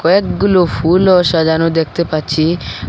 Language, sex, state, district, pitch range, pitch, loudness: Bengali, female, Assam, Hailakandi, 160-175 Hz, 165 Hz, -13 LUFS